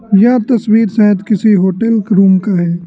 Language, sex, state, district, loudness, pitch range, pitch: Hindi, male, Arunachal Pradesh, Lower Dibang Valley, -11 LUFS, 195-225 Hz, 210 Hz